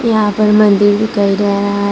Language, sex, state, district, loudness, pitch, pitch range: Hindi, female, Assam, Hailakandi, -12 LUFS, 205 Hz, 200-215 Hz